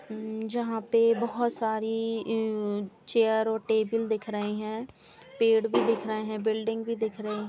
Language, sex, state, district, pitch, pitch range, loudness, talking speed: Hindi, female, Uttar Pradesh, Jalaun, 220 Hz, 215-225 Hz, -28 LUFS, 160 wpm